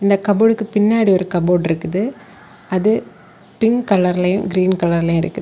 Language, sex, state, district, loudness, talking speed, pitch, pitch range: Tamil, female, Tamil Nadu, Kanyakumari, -16 LUFS, 135 wpm, 190 Hz, 180-215 Hz